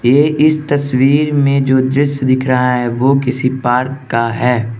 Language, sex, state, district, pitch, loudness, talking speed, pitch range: Hindi, male, Arunachal Pradesh, Lower Dibang Valley, 130 Hz, -13 LUFS, 175 wpm, 125-140 Hz